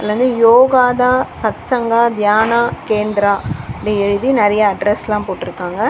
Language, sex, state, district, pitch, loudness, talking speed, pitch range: Tamil, female, Tamil Nadu, Chennai, 215 Hz, -14 LUFS, 110 wpm, 205-245 Hz